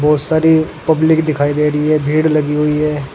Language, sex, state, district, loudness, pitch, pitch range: Hindi, male, Uttar Pradesh, Saharanpur, -14 LUFS, 150 Hz, 150-160 Hz